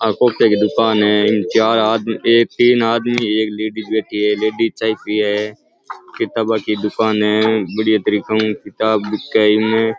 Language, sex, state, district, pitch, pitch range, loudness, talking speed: Rajasthani, male, Rajasthan, Churu, 110 Hz, 105-110 Hz, -16 LUFS, 175 wpm